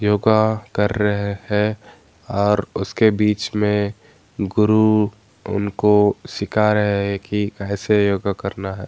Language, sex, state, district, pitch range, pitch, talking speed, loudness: Hindi, male, Bihar, Gaya, 100-105 Hz, 105 Hz, 120 wpm, -19 LUFS